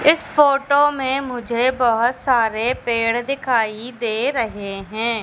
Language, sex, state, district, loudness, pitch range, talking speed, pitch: Hindi, female, Madhya Pradesh, Katni, -19 LUFS, 230-270 Hz, 125 wpm, 240 Hz